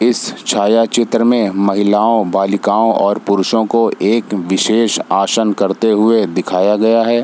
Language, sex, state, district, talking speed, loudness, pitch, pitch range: Hindi, male, Bihar, Samastipur, 140 wpm, -14 LUFS, 110 Hz, 100-115 Hz